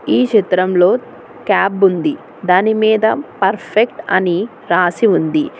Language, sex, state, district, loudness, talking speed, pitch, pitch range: Telugu, female, Telangana, Hyderabad, -15 LUFS, 95 wpm, 195 Hz, 180-220 Hz